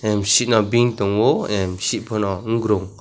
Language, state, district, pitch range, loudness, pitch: Kokborok, Tripura, West Tripura, 100-110 Hz, -19 LUFS, 105 Hz